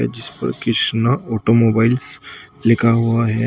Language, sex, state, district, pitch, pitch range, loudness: Hindi, male, Uttar Pradesh, Shamli, 115 Hz, 110-115 Hz, -15 LUFS